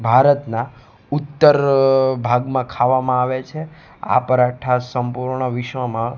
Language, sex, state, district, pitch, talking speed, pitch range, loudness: Gujarati, male, Gujarat, Gandhinagar, 130 Hz, 115 wpm, 125-135 Hz, -18 LUFS